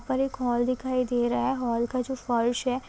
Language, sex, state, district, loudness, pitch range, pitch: Hindi, female, Chhattisgarh, Raigarh, -27 LUFS, 240-260 Hz, 250 Hz